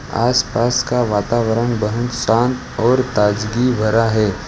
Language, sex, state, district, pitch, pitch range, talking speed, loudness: Hindi, male, Gujarat, Valsad, 115 Hz, 110-125 Hz, 120 wpm, -17 LUFS